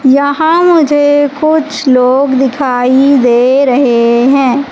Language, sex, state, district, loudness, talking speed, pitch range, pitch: Hindi, female, Madhya Pradesh, Katni, -9 LUFS, 100 wpm, 255-290 Hz, 275 Hz